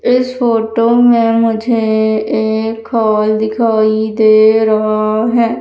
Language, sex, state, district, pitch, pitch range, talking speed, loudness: Hindi, female, Madhya Pradesh, Umaria, 220 Hz, 215-230 Hz, 105 wpm, -12 LUFS